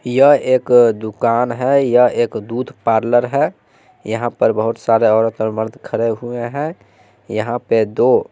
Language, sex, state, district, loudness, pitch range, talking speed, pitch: Hindi, male, Bihar, West Champaran, -16 LUFS, 110-125 Hz, 160 wpm, 120 Hz